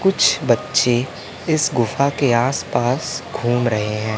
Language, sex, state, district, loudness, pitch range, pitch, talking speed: Hindi, male, Madhya Pradesh, Umaria, -18 LUFS, 115-140 Hz, 120 Hz, 130 wpm